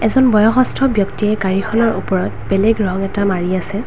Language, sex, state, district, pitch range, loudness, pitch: Assamese, female, Assam, Kamrup Metropolitan, 190-225 Hz, -16 LUFS, 205 Hz